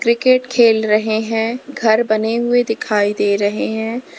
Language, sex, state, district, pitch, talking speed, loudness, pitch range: Hindi, female, Uttar Pradesh, Lalitpur, 225 Hz, 155 wpm, -16 LUFS, 215-240 Hz